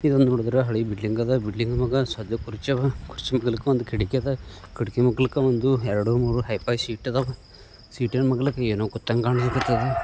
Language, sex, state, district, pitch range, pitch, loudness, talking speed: Kannada, male, Karnataka, Bijapur, 110-130 Hz, 120 Hz, -24 LUFS, 165 wpm